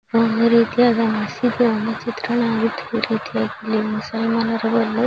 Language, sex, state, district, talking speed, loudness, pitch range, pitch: Kannada, female, Karnataka, Raichur, 130 wpm, -19 LUFS, 220-235 Hz, 230 Hz